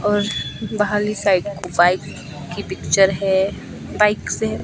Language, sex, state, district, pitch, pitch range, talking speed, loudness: Hindi, female, Himachal Pradesh, Shimla, 195 Hz, 180-210 Hz, 130 wpm, -19 LUFS